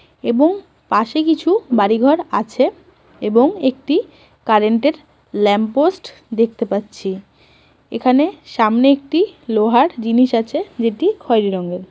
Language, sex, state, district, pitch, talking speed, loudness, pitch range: Bengali, male, West Bengal, Jhargram, 245 Hz, 110 wpm, -16 LUFS, 220-310 Hz